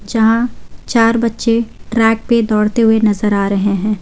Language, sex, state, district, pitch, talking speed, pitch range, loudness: Hindi, female, Jharkhand, Garhwa, 225 Hz, 165 wpm, 210-230 Hz, -14 LUFS